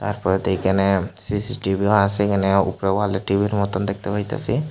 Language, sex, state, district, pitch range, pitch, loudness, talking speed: Bengali, male, Tripura, Unakoti, 95-105 Hz, 100 Hz, -21 LUFS, 140 wpm